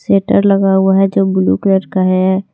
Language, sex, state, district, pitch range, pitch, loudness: Hindi, female, Jharkhand, Deoghar, 185-195 Hz, 190 Hz, -12 LUFS